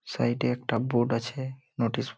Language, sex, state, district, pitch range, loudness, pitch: Bengali, male, West Bengal, Malda, 115-130 Hz, -29 LUFS, 120 Hz